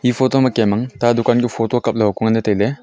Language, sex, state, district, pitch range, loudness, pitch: Wancho, male, Arunachal Pradesh, Longding, 110-125 Hz, -17 LUFS, 120 Hz